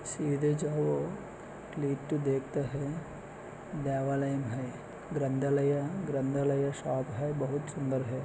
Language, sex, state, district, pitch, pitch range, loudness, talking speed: Hindi, male, Maharashtra, Solapur, 140 Hz, 135-150 Hz, -33 LUFS, 95 wpm